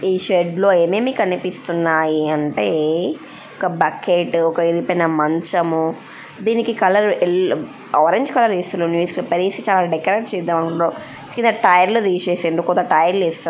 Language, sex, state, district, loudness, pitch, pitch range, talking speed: Telugu, female, Andhra Pradesh, Guntur, -18 LUFS, 180 Hz, 165-190 Hz, 130 wpm